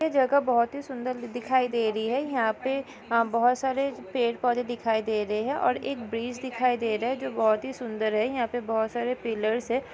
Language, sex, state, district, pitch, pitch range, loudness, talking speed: Hindi, female, Maharashtra, Aurangabad, 245 Hz, 230-260 Hz, -27 LUFS, 215 wpm